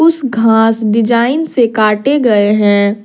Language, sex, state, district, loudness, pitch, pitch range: Hindi, female, Jharkhand, Deoghar, -11 LUFS, 225 Hz, 210-260 Hz